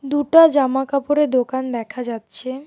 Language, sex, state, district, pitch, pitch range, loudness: Bengali, female, West Bengal, Alipurduar, 265 Hz, 255-290 Hz, -18 LUFS